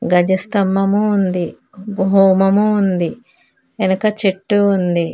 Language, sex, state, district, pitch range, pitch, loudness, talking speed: Telugu, female, Telangana, Mahabubabad, 190-210 Hz, 195 Hz, -15 LUFS, 105 wpm